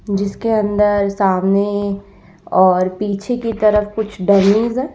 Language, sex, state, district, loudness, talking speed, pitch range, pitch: Hindi, female, Uttar Pradesh, Lalitpur, -16 LUFS, 120 wpm, 195-215 Hz, 205 Hz